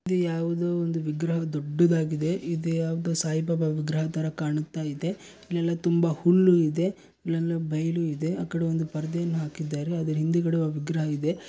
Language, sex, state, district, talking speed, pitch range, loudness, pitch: Kannada, male, Karnataka, Bellary, 145 wpm, 155-170 Hz, -27 LUFS, 165 Hz